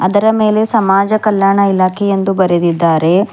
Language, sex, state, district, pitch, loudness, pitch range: Kannada, female, Karnataka, Bidar, 195 Hz, -12 LUFS, 185-215 Hz